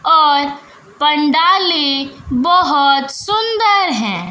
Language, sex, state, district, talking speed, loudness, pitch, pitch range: Hindi, female, Bihar, West Champaran, 70 wpm, -13 LUFS, 295 Hz, 275-365 Hz